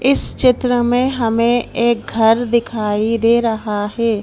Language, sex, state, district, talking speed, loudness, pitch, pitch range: Hindi, female, Madhya Pradesh, Bhopal, 140 wpm, -15 LUFS, 230 Hz, 225-240 Hz